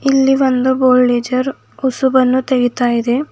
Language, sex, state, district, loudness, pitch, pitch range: Kannada, female, Karnataka, Bidar, -14 LUFS, 260 Hz, 250-265 Hz